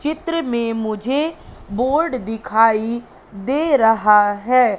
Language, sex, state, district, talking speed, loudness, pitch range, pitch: Hindi, female, Madhya Pradesh, Katni, 100 wpm, -18 LUFS, 220-280 Hz, 235 Hz